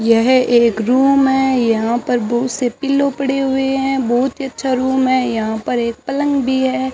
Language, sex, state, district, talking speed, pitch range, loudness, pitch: Hindi, male, Rajasthan, Bikaner, 200 wpm, 240-270 Hz, -16 LUFS, 260 Hz